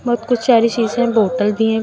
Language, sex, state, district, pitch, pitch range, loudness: Hindi, female, Uttar Pradesh, Lucknow, 230 Hz, 220-240 Hz, -16 LUFS